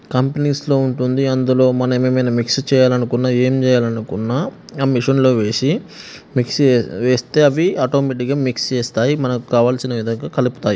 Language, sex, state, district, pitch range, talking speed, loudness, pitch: Telugu, male, Telangana, Nalgonda, 125-135 Hz, 140 wpm, -17 LUFS, 130 Hz